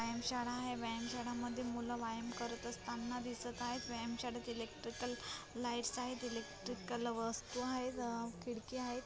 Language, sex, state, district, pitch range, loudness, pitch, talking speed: Marathi, female, Maharashtra, Solapur, 235-245 Hz, -43 LUFS, 240 Hz, 125 wpm